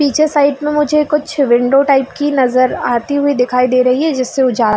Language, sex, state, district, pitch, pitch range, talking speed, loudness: Hindi, female, Chhattisgarh, Bilaspur, 275 Hz, 255-290 Hz, 215 wpm, -13 LUFS